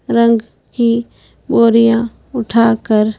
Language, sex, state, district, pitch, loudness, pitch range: Hindi, female, Madhya Pradesh, Bhopal, 230 Hz, -14 LUFS, 230-235 Hz